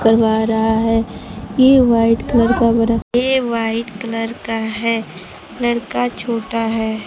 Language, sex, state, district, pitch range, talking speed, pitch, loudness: Hindi, female, Bihar, Kaimur, 225-235 Hz, 135 wpm, 230 Hz, -17 LUFS